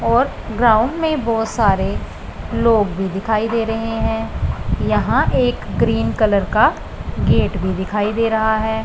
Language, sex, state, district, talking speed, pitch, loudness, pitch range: Hindi, female, Punjab, Pathankot, 150 wpm, 215 Hz, -18 LUFS, 185-225 Hz